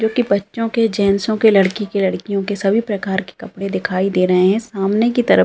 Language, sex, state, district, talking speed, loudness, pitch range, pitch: Hindi, female, Uttarakhand, Uttarkashi, 240 wpm, -17 LUFS, 190-220 Hz, 200 Hz